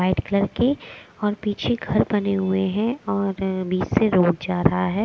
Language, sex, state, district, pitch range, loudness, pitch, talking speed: Hindi, female, Bihar, West Champaran, 185-210 Hz, -22 LUFS, 195 Hz, 190 wpm